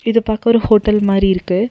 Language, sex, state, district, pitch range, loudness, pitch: Tamil, female, Tamil Nadu, Nilgiris, 195-230 Hz, -14 LUFS, 215 Hz